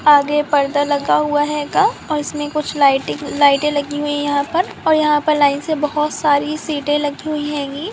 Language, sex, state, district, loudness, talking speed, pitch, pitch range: Hindi, female, Andhra Pradesh, Krishna, -17 LUFS, 195 wpm, 295 Hz, 285-300 Hz